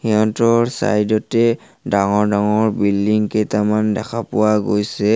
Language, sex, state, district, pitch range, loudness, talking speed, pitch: Assamese, male, Assam, Sonitpur, 105-110 Hz, -17 LUFS, 105 wpm, 105 Hz